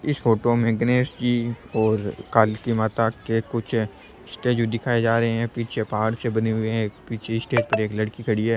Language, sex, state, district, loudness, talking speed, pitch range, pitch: Rajasthani, male, Rajasthan, Churu, -23 LUFS, 195 wpm, 110-120 Hz, 115 Hz